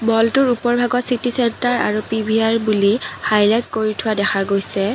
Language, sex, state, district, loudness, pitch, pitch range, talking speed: Assamese, female, Assam, Kamrup Metropolitan, -17 LUFS, 225 Hz, 210-245 Hz, 160 wpm